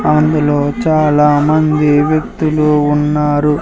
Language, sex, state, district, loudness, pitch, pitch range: Telugu, male, Andhra Pradesh, Sri Satya Sai, -12 LUFS, 150 Hz, 145-155 Hz